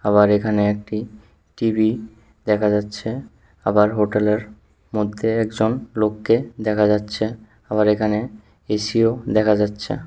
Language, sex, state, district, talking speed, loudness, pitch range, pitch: Bengali, male, Tripura, West Tripura, 105 wpm, -20 LUFS, 105-110 Hz, 105 Hz